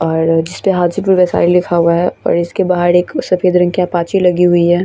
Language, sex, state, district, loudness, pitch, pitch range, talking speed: Hindi, female, Bihar, Vaishali, -13 LUFS, 175 Hz, 170-180 Hz, 185 wpm